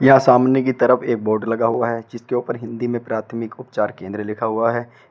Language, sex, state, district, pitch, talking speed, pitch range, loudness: Hindi, male, Uttar Pradesh, Shamli, 115 Hz, 225 wpm, 110-125 Hz, -20 LUFS